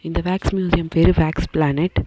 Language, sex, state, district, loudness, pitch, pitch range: Tamil, female, Tamil Nadu, Nilgiris, -19 LUFS, 165 Hz, 160-180 Hz